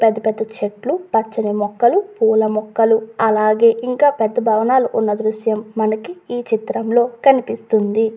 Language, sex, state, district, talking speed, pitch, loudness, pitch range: Telugu, female, Andhra Pradesh, Guntur, 130 wpm, 220 Hz, -17 LUFS, 215-240 Hz